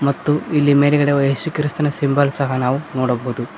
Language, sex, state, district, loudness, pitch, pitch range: Kannada, male, Karnataka, Koppal, -17 LUFS, 140 Hz, 130-150 Hz